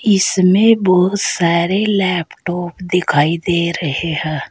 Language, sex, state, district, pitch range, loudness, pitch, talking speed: Hindi, female, Uttar Pradesh, Saharanpur, 170-190 Hz, -15 LUFS, 180 Hz, 105 wpm